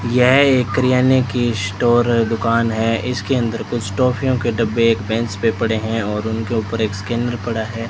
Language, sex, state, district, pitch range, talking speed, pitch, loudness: Hindi, male, Rajasthan, Bikaner, 110-120 Hz, 190 wpm, 115 Hz, -18 LUFS